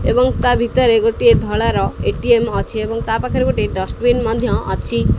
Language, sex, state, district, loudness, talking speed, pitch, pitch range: Odia, male, Odisha, Khordha, -16 LUFS, 175 wpm, 245 Hz, 235-255 Hz